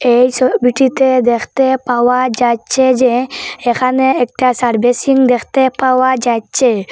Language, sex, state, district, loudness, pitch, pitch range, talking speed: Bengali, female, Assam, Hailakandi, -13 LUFS, 255 Hz, 245-260 Hz, 105 wpm